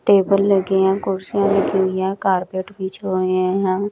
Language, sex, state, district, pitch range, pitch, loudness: Hindi, female, Chandigarh, Chandigarh, 185-195 Hz, 190 Hz, -19 LUFS